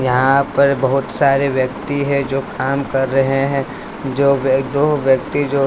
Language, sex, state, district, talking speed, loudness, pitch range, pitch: Hindi, male, Bihar, West Champaran, 170 wpm, -16 LUFS, 135-140 Hz, 135 Hz